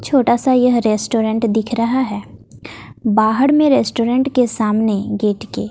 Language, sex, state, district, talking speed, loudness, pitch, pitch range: Hindi, female, Bihar, West Champaran, 145 wpm, -16 LUFS, 230 Hz, 215-250 Hz